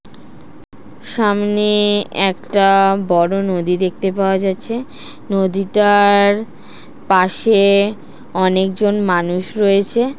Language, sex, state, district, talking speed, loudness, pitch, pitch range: Bengali, female, West Bengal, Jhargram, 75 wpm, -15 LUFS, 200 Hz, 190-210 Hz